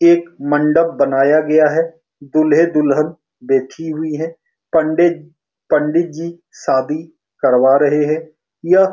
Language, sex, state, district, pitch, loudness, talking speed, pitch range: Hindi, male, Bihar, Saran, 155 Hz, -16 LUFS, 120 wpm, 150-165 Hz